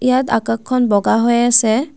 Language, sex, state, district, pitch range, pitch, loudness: Assamese, female, Assam, Kamrup Metropolitan, 220-255 Hz, 235 Hz, -14 LUFS